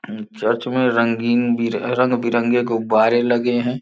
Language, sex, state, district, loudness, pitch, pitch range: Hindi, male, Uttar Pradesh, Gorakhpur, -18 LUFS, 120 Hz, 115-125 Hz